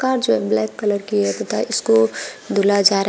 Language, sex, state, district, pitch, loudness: Hindi, female, Uttar Pradesh, Shamli, 195 Hz, -18 LUFS